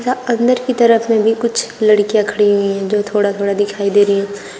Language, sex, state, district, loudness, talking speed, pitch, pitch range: Hindi, female, Uttar Pradesh, Shamli, -14 LUFS, 220 wpm, 210 Hz, 200-230 Hz